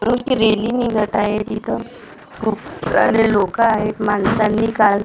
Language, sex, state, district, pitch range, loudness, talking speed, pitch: Marathi, female, Maharashtra, Gondia, 210-225 Hz, -18 LUFS, 120 wpm, 215 Hz